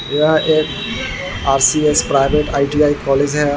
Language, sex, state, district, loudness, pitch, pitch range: Hindi, male, Bihar, Vaishali, -15 LUFS, 145 Hz, 140-150 Hz